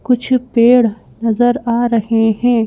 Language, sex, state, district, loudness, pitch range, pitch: Hindi, female, Madhya Pradesh, Bhopal, -14 LUFS, 225-245 Hz, 235 Hz